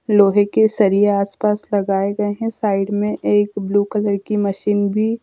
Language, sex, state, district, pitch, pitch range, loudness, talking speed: Hindi, female, Madhya Pradesh, Dhar, 205 Hz, 200-210 Hz, -18 LUFS, 170 wpm